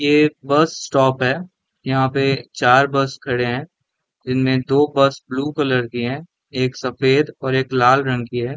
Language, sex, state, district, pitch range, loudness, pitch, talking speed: Hindi, male, Chhattisgarh, Raigarh, 130-140 Hz, -18 LUFS, 135 Hz, 175 wpm